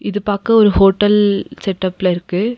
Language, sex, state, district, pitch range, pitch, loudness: Tamil, female, Tamil Nadu, Nilgiris, 190-210 Hz, 200 Hz, -14 LUFS